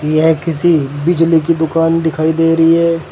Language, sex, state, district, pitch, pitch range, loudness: Hindi, male, Uttar Pradesh, Saharanpur, 165 Hz, 160-165 Hz, -13 LUFS